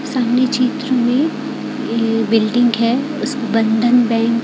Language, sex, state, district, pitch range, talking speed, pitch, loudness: Hindi, female, Odisha, Khordha, 230-260 Hz, 135 wpm, 245 Hz, -16 LUFS